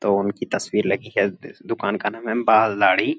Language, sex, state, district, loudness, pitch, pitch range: Hindi, male, Uttar Pradesh, Gorakhpur, -21 LUFS, 110 Hz, 100-115 Hz